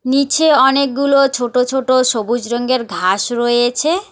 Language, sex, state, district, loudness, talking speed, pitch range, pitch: Bengali, female, West Bengal, Alipurduar, -14 LUFS, 115 wpm, 240-275 Hz, 255 Hz